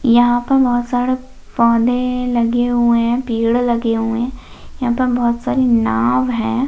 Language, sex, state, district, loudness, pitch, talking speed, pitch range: Hindi, female, Maharashtra, Pune, -16 LUFS, 240 Hz, 160 wpm, 230-245 Hz